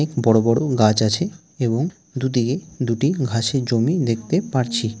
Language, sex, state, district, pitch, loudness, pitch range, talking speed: Bengali, male, West Bengal, Jalpaiguri, 130 Hz, -20 LUFS, 115-155 Hz, 145 wpm